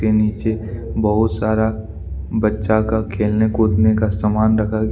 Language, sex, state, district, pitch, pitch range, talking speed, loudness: Hindi, male, Jharkhand, Deoghar, 110 Hz, 105-110 Hz, 145 wpm, -18 LUFS